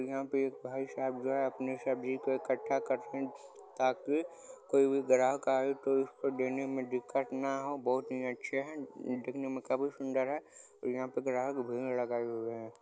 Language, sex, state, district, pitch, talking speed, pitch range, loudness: Hindi, male, Bihar, Supaul, 130 Hz, 185 wpm, 130-135 Hz, -35 LUFS